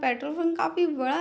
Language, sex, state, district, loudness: Hindi, female, Bihar, Darbhanga, -27 LUFS